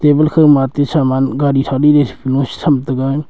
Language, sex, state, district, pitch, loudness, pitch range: Wancho, male, Arunachal Pradesh, Longding, 140 Hz, -13 LUFS, 135-150 Hz